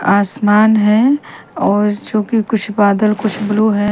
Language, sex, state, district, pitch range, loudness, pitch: Hindi, female, Haryana, Charkhi Dadri, 205-220 Hz, -14 LUFS, 210 Hz